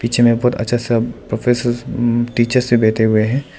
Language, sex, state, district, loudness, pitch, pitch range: Hindi, male, Arunachal Pradesh, Lower Dibang Valley, -16 LUFS, 120 Hz, 115-120 Hz